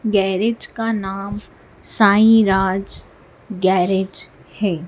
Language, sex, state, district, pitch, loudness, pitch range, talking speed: Hindi, female, Madhya Pradesh, Dhar, 200 Hz, -18 LUFS, 190-215 Hz, 85 wpm